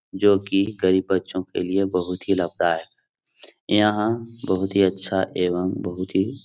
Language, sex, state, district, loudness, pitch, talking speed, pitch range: Hindi, male, Bihar, Supaul, -22 LUFS, 95 Hz, 150 wpm, 95-100 Hz